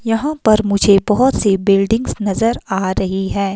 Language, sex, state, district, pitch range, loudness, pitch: Hindi, female, Himachal Pradesh, Shimla, 195-225 Hz, -15 LUFS, 205 Hz